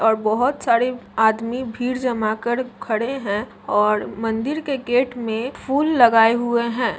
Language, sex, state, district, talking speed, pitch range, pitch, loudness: Hindi, female, Jharkhand, Jamtara, 155 wpm, 220-255 Hz, 235 Hz, -20 LUFS